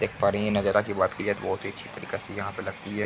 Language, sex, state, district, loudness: Hindi, male, Bihar, Araria, -28 LUFS